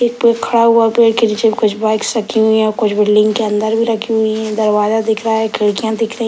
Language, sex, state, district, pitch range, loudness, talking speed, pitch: Hindi, male, Bihar, Sitamarhi, 215-225 Hz, -14 LUFS, 285 wpm, 220 Hz